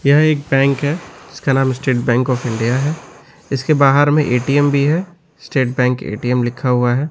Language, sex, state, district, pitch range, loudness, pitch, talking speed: Hindi, male, Bihar, West Champaran, 125-145 Hz, -16 LUFS, 135 Hz, 195 wpm